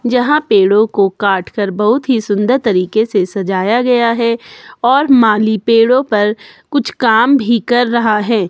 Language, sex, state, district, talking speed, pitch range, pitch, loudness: Hindi, female, Himachal Pradesh, Shimla, 155 wpm, 210-245 Hz, 225 Hz, -13 LUFS